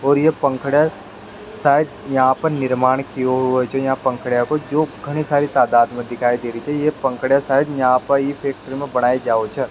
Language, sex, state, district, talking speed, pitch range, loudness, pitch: Rajasthani, male, Rajasthan, Nagaur, 205 wpm, 125-145 Hz, -18 LUFS, 135 Hz